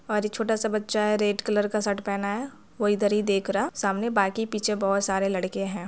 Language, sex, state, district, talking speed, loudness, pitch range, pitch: Hindi, female, Jharkhand, Jamtara, 235 wpm, -26 LUFS, 200-215 Hz, 210 Hz